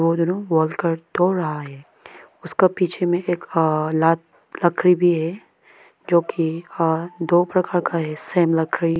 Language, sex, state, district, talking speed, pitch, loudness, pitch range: Hindi, female, Arunachal Pradesh, Lower Dibang Valley, 180 wpm, 170 Hz, -20 LUFS, 160-180 Hz